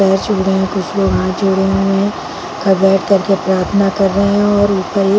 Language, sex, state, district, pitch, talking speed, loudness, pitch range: Hindi, female, Chhattisgarh, Bilaspur, 195 Hz, 220 wpm, -14 LUFS, 190-200 Hz